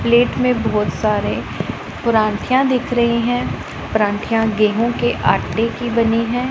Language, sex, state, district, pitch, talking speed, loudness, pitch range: Hindi, female, Punjab, Pathankot, 230 Hz, 140 wpm, -18 LUFS, 220-240 Hz